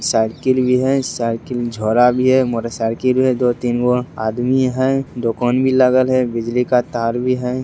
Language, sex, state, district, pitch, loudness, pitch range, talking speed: Angika, male, Bihar, Begusarai, 125 Hz, -17 LUFS, 115-130 Hz, 165 wpm